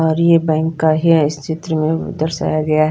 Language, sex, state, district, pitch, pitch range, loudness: Hindi, female, Bihar, Patna, 160 Hz, 155-165 Hz, -16 LUFS